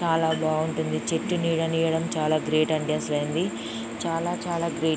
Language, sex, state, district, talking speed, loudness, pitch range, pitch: Telugu, female, Andhra Pradesh, Chittoor, 145 wpm, -26 LUFS, 155-165 Hz, 160 Hz